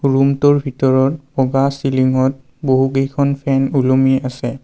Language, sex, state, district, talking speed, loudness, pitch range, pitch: Assamese, male, Assam, Kamrup Metropolitan, 115 wpm, -16 LUFS, 130-140 Hz, 135 Hz